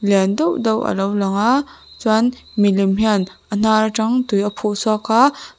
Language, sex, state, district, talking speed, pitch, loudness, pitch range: Mizo, female, Mizoram, Aizawl, 185 wpm, 215 Hz, -18 LUFS, 200-225 Hz